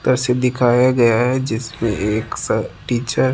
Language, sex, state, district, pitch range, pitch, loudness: Hindi, male, Rajasthan, Jaipur, 115-125 Hz, 120 Hz, -18 LUFS